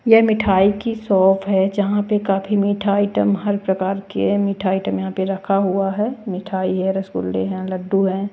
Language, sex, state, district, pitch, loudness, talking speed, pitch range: Hindi, female, Bihar, West Champaran, 195 Hz, -19 LUFS, 185 wpm, 190-205 Hz